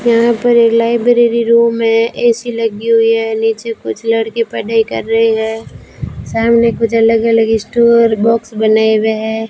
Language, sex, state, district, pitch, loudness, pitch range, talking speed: Hindi, female, Rajasthan, Bikaner, 230 Hz, -12 LUFS, 225-235 Hz, 165 wpm